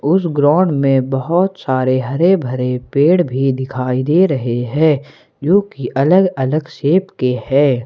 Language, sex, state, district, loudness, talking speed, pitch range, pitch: Hindi, male, Jharkhand, Ranchi, -15 LUFS, 155 wpm, 130-170 Hz, 140 Hz